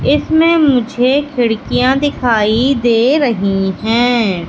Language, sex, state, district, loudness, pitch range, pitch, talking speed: Hindi, female, Madhya Pradesh, Katni, -13 LUFS, 220-275 Hz, 245 Hz, 95 wpm